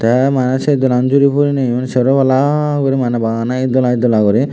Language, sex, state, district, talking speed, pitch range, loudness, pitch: Chakma, male, Tripura, West Tripura, 225 wpm, 125-135 Hz, -14 LUFS, 130 Hz